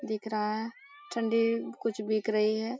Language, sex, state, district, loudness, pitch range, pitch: Hindi, female, Bihar, Lakhisarai, -31 LUFS, 215-230 Hz, 220 Hz